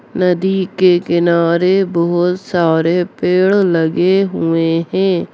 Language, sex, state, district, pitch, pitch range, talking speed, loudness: Hindi, female, Bihar, Darbhanga, 180 Hz, 170-185 Hz, 100 wpm, -14 LUFS